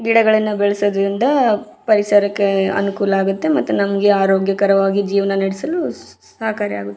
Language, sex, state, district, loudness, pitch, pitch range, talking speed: Kannada, female, Karnataka, Raichur, -17 LUFS, 200 Hz, 195-215 Hz, 105 wpm